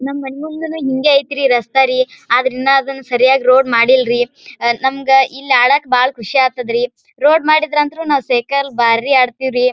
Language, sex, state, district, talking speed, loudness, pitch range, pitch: Kannada, male, Karnataka, Bijapur, 165 wpm, -14 LUFS, 250-280 Hz, 265 Hz